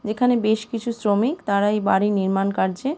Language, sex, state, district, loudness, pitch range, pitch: Bengali, female, West Bengal, Purulia, -21 LUFS, 200-235 Hz, 210 Hz